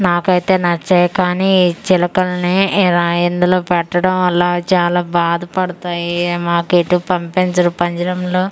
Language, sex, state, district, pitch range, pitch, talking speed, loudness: Telugu, female, Andhra Pradesh, Manyam, 175-185 Hz, 180 Hz, 115 wpm, -15 LUFS